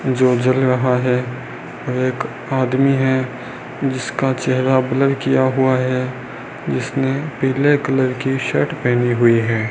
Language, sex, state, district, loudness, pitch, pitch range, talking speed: Hindi, male, Rajasthan, Bikaner, -18 LUFS, 130 Hz, 125-135 Hz, 130 wpm